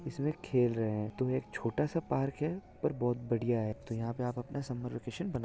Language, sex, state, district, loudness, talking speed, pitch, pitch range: Hindi, male, Maharashtra, Solapur, -35 LUFS, 255 wpm, 125 Hz, 115-140 Hz